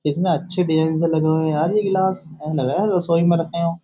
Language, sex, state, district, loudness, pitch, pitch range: Hindi, male, Uttar Pradesh, Jyotiba Phule Nagar, -19 LUFS, 165 Hz, 160-180 Hz